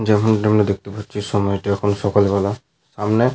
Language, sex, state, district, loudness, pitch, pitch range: Bengali, male, Jharkhand, Sahebganj, -19 LUFS, 105 Hz, 100-110 Hz